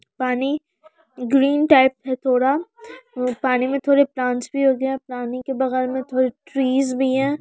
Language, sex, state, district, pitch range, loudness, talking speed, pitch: Hindi, female, Bihar, Araria, 255-280 Hz, -20 LUFS, 170 wpm, 265 Hz